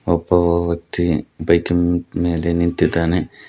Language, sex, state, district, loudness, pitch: Kannada, male, Karnataka, Koppal, -18 LUFS, 85 Hz